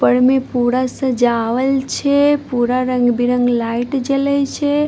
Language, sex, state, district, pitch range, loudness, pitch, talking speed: Maithili, female, Bihar, Madhepura, 245-275 Hz, -16 LUFS, 255 Hz, 125 wpm